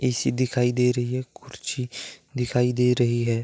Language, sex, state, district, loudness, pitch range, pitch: Hindi, male, Uttar Pradesh, Gorakhpur, -24 LUFS, 120-125 Hz, 125 Hz